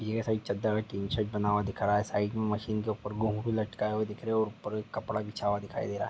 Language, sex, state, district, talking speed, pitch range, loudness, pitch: Hindi, male, Jharkhand, Sahebganj, 305 wpm, 105-110 Hz, -32 LUFS, 105 Hz